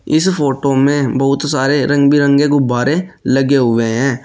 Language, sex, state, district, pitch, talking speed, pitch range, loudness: Hindi, male, Uttar Pradesh, Shamli, 140 Hz, 155 wpm, 135-145 Hz, -13 LUFS